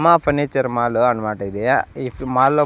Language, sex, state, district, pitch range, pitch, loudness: Telugu, male, Andhra Pradesh, Annamaya, 120-145 Hz, 130 Hz, -19 LUFS